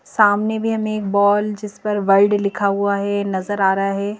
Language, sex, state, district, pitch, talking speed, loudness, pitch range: Hindi, female, Madhya Pradesh, Bhopal, 205 Hz, 215 wpm, -18 LUFS, 200-210 Hz